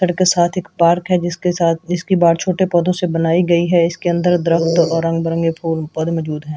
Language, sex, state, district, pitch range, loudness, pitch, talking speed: Hindi, female, Delhi, New Delhi, 165-180 Hz, -16 LUFS, 170 Hz, 210 wpm